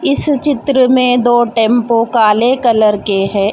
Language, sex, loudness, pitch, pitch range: Hindi, female, -12 LUFS, 235 Hz, 215-250 Hz